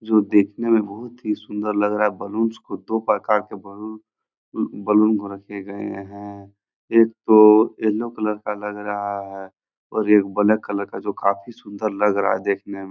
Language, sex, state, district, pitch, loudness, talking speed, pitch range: Hindi, male, Bihar, Jahanabad, 105 Hz, -20 LUFS, 190 wpm, 100-110 Hz